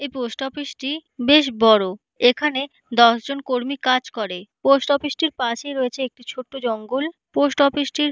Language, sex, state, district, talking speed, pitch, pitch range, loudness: Bengali, female, West Bengal, Paschim Medinipur, 190 wpm, 265 Hz, 245-285 Hz, -20 LUFS